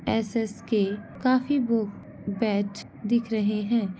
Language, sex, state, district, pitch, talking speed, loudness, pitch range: Hindi, female, Bihar, East Champaran, 220 Hz, 90 wpm, -26 LUFS, 205-235 Hz